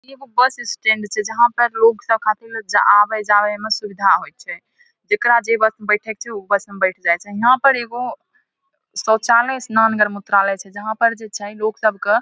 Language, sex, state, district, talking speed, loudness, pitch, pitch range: Maithili, female, Bihar, Samastipur, 195 wpm, -17 LUFS, 220 Hz, 210-240 Hz